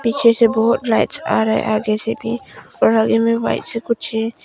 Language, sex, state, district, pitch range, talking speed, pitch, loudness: Hindi, female, Arunachal Pradesh, Longding, 220-230 Hz, 215 wpm, 225 Hz, -17 LUFS